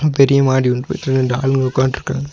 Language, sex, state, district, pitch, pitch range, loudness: Tamil, male, Tamil Nadu, Nilgiris, 135 Hz, 130-140 Hz, -16 LUFS